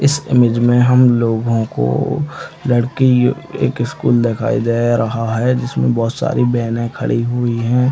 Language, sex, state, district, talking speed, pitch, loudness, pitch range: Hindi, male, Chhattisgarh, Raigarh, 150 wpm, 120 Hz, -16 LUFS, 115-125 Hz